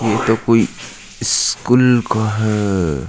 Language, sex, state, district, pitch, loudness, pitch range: Hindi, male, Chhattisgarh, Jashpur, 110 Hz, -16 LUFS, 105-115 Hz